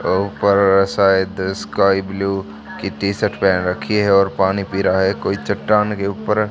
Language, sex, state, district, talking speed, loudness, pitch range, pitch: Hindi, male, Haryana, Charkhi Dadri, 195 wpm, -17 LUFS, 95-100 Hz, 100 Hz